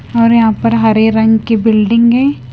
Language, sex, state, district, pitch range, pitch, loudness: Hindi, female, Punjab, Kapurthala, 220-230 Hz, 225 Hz, -10 LUFS